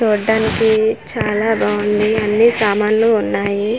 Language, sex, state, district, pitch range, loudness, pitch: Telugu, female, Andhra Pradesh, Manyam, 210-220 Hz, -15 LUFS, 215 Hz